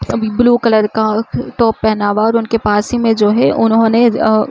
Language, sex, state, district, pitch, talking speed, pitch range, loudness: Hindi, female, Uttar Pradesh, Muzaffarnagar, 220 Hz, 240 wpm, 215-230 Hz, -13 LUFS